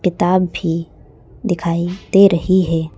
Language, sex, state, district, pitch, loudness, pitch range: Hindi, female, Madhya Pradesh, Bhopal, 175 Hz, -16 LUFS, 170-185 Hz